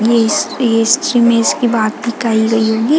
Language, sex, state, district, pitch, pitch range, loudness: Hindi, female, Chhattisgarh, Bilaspur, 230 Hz, 225-240 Hz, -13 LUFS